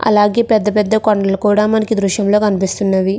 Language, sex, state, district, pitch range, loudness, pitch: Telugu, female, Andhra Pradesh, Krishna, 200-215 Hz, -14 LUFS, 210 Hz